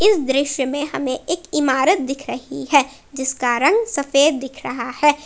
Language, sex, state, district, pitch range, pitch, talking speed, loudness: Hindi, female, Jharkhand, Palamu, 265-300 Hz, 280 Hz, 170 wpm, -19 LUFS